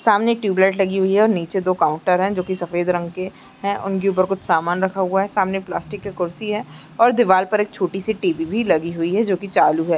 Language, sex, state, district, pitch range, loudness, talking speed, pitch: Hindi, female, Chhattisgarh, Sarguja, 180-200 Hz, -19 LUFS, 270 wpm, 190 Hz